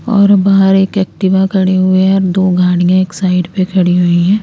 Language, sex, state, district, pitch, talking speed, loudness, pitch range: Hindi, female, Chandigarh, Chandigarh, 185 Hz, 215 wpm, -11 LUFS, 180-195 Hz